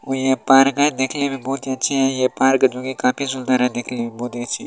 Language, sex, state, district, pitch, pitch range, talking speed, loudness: Hindi, male, Bihar, Araria, 130 Hz, 125-135 Hz, 280 wpm, -19 LUFS